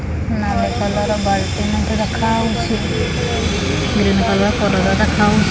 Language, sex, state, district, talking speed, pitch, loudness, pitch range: Odia, male, Odisha, Khordha, 85 wpm, 100 Hz, -17 LUFS, 95-100 Hz